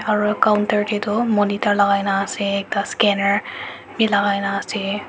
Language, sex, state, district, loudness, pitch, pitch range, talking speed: Nagamese, male, Nagaland, Dimapur, -19 LUFS, 205 Hz, 200-210 Hz, 165 wpm